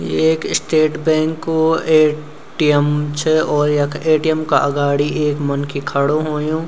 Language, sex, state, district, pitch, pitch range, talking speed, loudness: Garhwali, male, Uttarakhand, Uttarkashi, 150 Hz, 145-155 Hz, 135 wpm, -16 LUFS